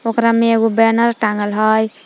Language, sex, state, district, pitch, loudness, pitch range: Magahi, female, Jharkhand, Palamu, 225 Hz, -14 LUFS, 215-230 Hz